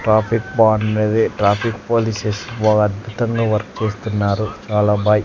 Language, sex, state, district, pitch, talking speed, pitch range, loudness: Telugu, male, Andhra Pradesh, Sri Satya Sai, 110 Hz, 115 wpm, 105-110 Hz, -18 LUFS